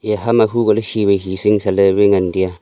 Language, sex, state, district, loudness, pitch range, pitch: Wancho, male, Arunachal Pradesh, Longding, -15 LUFS, 95-110 Hz, 100 Hz